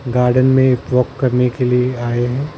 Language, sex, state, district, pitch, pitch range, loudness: Hindi, male, Maharashtra, Mumbai Suburban, 125 Hz, 125-130 Hz, -15 LUFS